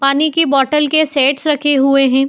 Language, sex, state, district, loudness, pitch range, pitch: Hindi, female, Uttar Pradesh, Etah, -13 LUFS, 275-300 Hz, 280 Hz